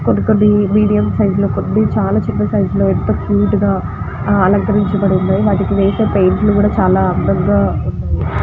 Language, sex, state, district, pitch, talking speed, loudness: Telugu, female, Andhra Pradesh, Guntur, 105 Hz, 155 wpm, -14 LUFS